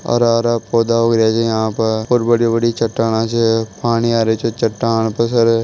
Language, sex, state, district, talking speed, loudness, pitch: Marwari, male, Rajasthan, Nagaur, 190 wpm, -16 LUFS, 115 Hz